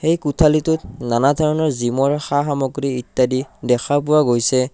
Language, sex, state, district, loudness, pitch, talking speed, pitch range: Assamese, male, Assam, Kamrup Metropolitan, -18 LUFS, 140 Hz, 125 wpm, 125-150 Hz